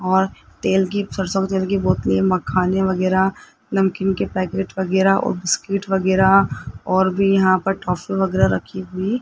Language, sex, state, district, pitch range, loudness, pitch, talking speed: Hindi, male, Rajasthan, Jaipur, 185-195 Hz, -19 LUFS, 190 Hz, 170 wpm